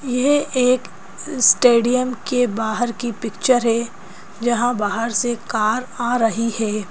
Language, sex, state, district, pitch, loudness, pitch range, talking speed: Hindi, female, Madhya Pradesh, Bhopal, 235 Hz, -19 LUFS, 220-250 Hz, 130 wpm